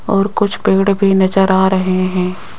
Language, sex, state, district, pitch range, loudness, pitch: Hindi, female, Rajasthan, Jaipur, 185-195 Hz, -14 LUFS, 190 Hz